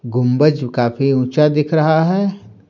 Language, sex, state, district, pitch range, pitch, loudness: Hindi, male, Bihar, Patna, 125-155 Hz, 145 Hz, -16 LUFS